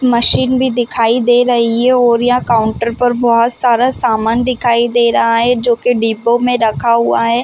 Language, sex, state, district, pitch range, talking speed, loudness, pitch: Hindi, female, Chhattisgarh, Balrampur, 230-245 Hz, 185 wpm, -12 LUFS, 240 Hz